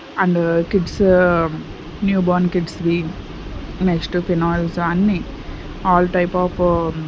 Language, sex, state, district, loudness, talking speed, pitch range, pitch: Telugu, female, Andhra Pradesh, Sri Satya Sai, -18 LUFS, 110 wpm, 170-180 Hz, 175 Hz